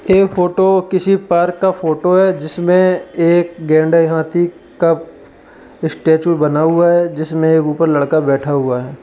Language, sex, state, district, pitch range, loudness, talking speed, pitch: Hindi, male, Uttar Pradesh, Lalitpur, 155-180 Hz, -14 LUFS, 160 wpm, 170 Hz